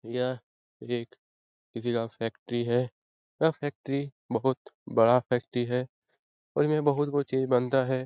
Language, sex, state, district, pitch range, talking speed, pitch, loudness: Hindi, male, Bihar, Lakhisarai, 120-135 Hz, 135 wpm, 125 Hz, -29 LUFS